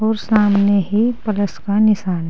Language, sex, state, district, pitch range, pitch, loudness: Hindi, female, Uttar Pradesh, Saharanpur, 200-215 Hz, 210 Hz, -16 LUFS